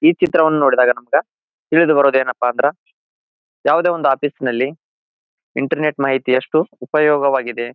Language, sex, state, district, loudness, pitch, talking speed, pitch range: Kannada, male, Karnataka, Bijapur, -16 LUFS, 140 Hz, 125 wpm, 130-155 Hz